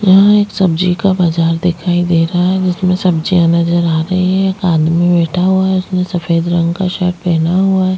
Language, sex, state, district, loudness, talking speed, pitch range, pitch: Hindi, female, Chhattisgarh, Jashpur, -13 LUFS, 210 wpm, 170-185 Hz, 180 Hz